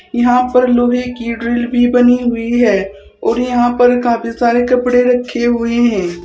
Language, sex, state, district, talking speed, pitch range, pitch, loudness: Hindi, female, Uttar Pradesh, Saharanpur, 170 wpm, 235-245 Hz, 245 Hz, -13 LUFS